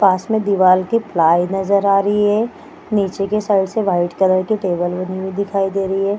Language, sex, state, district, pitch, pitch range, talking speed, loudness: Hindi, female, Bihar, Gaya, 195 Hz, 185-205 Hz, 240 wpm, -17 LUFS